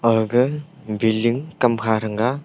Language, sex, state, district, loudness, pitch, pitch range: Wancho, male, Arunachal Pradesh, Longding, -20 LUFS, 115 Hz, 110-130 Hz